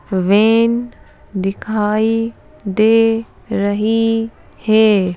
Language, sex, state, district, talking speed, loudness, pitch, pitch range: Hindi, female, Madhya Pradesh, Bhopal, 60 wpm, -16 LUFS, 220 Hz, 200-225 Hz